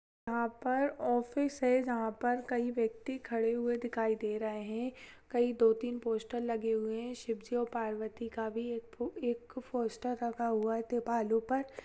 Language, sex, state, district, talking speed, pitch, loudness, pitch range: Hindi, female, Rajasthan, Churu, 165 wpm, 235 Hz, -35 LUFS, 225-245 Hz